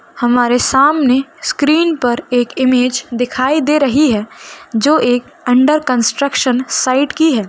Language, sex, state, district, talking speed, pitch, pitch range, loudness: Hindi, female, Bihar, Gopalganj, 135 wpm, 255 Hz, 245-290 Hz, -13 LUFS